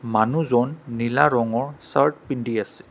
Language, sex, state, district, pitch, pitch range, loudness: Assamese, male, Assam, Kamrup Metropolitan, 120 Hz, 115-140 Hz, -22 LUFS